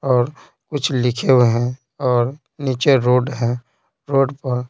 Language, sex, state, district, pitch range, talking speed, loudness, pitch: Hindi, male, Bihar, Patna, 125-135 Hz, 140 wpm, -19 LUFS, 125 Hz